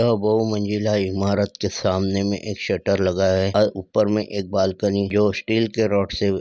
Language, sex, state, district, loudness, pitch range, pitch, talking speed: Hindi, male, Uttar Pradesh, Ghazipur, -21 LUFS, 95-105 Hz, 100 Hz, 195 wpm